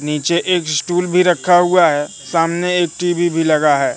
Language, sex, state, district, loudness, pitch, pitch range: Hindi, male, Madhya Pradesh, Katni, -15 LUFS, 170 Hz, 155-180 Hz